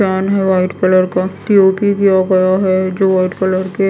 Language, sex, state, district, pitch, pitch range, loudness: Hindi, female, Bihar, West Champaran, 190 Hz, 185-195 Hz, -13 LUFS